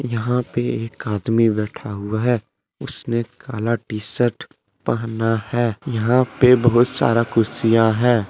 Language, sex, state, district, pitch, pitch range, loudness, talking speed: Hindi, male, Jharkhand, Deoghar, 115 Hz, 110-120 Hz, -20 LUFS, 135 wpm